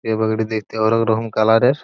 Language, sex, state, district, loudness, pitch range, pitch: Bengali, male, West Bengal, Purulia, -18 LUFS, 110-115 Hz, 110 Hz